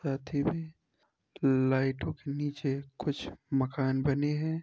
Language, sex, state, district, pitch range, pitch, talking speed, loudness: Hindi, male, Uttar Pradesh, Jyotiba Phule Nagar, 135-145 Hz, 140 Hz, 140 wpm, -31 LUFS